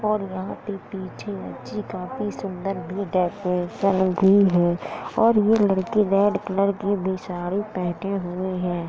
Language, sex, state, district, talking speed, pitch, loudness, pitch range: Hindi, male, Uttar Pradesh, Jalaun, 150 wpm, 195 Hz, -23 LUFS, 180-200 Hz